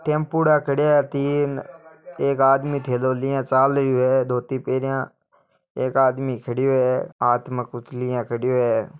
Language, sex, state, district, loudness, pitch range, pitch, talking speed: Marwari, male, Rajasthan, Nagaur, -21 LUFS, 125-140 Hz, 130 Hz, 155 wpm